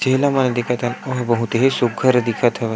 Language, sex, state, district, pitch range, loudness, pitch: Chhattisgarhi, male, Chhattisgarh, Sukma, 120-130 Hz, -18 LUFS, 125 Hz